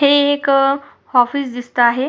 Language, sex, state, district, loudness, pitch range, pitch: Marathi, female, Maharashtra, Sindhudurg, -16 LUFS, 245-285 Hz, 275 Hz